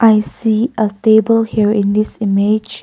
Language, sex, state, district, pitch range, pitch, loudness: English, female, Nagaland, Kohima, 210-225 Hz, 215 Hz, -14 LUFS